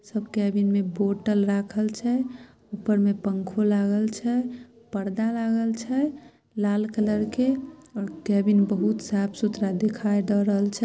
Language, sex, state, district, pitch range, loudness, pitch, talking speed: Maithili, female, Bihar, Samastipur, 200-230 Hz, -25 LUFS, 210 Hz, 140 wpm